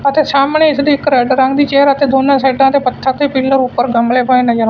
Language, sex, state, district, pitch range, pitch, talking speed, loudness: Punjabi, male, Punjab, Fazilka, 255-280 Hz, 270 Hz, 255 wpm, -11 LUFS